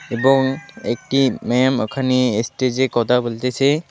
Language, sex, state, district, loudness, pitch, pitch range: Bengali, male, West Bengal, Alipurduar, -18 LUFS, 130 Hz, 120-135 Hz